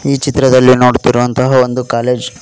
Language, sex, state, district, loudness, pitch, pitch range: Kannada, male, Karnataka, Koppal, -11 LUFS, 125 Hz, 125-130 Hz